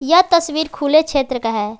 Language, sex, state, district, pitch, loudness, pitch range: Hindi, female, Jharkhand, Garhwa, 295 Hz, -16 LUFS, 255-320 Hz